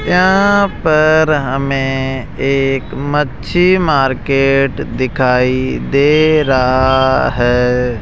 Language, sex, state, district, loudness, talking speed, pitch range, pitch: Hindi, male, Rajasthan, Jaipur, -13 LUFS, 75 wpm, 130-155 Hz, 135 Hz